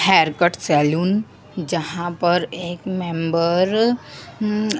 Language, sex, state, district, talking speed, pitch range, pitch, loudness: Hindi, female, Madhya Pradesh, Dhar, 90 wpm, 165-190 Hz, 175 Hz, -20 LUFS